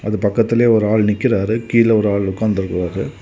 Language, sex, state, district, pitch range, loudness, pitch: Tamil, male, Tamil Nadu, Kanyakumari, 100-115 Hz, -16 LUFS, 105 Hz